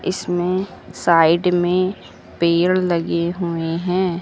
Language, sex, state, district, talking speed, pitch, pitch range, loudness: Hindi, female, Uttar Pradesh, Lucknow, 100 wpm, 175 Hz, 170-185 Hz, -19 LUFS